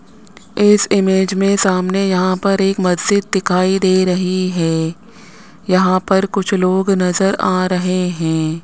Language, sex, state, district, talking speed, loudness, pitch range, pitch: Hindi, male, Rajasthan, Jaipur, 140 wpm, -15 LUFS, 185-195 Hz, 185 Hz